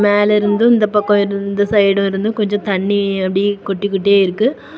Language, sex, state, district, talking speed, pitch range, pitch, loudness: Tamil, female, Tamil Nadu, Kanyakumari, 165 wpm, 200-210 Hz, 205 Hz, -15 LUFS